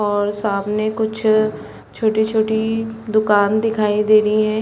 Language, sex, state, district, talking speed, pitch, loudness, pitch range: Hindi, female, Chhattisgarh, Bastar, 115 wpm, 215 Hz, -18 LUFS, 210-220 Hz